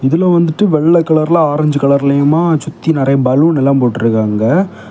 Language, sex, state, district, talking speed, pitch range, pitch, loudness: Tamil, male, Tamil Nadu, Kanyakumari, 135 wpm, 135-165 Hz, 150 Hz, -12 LUFS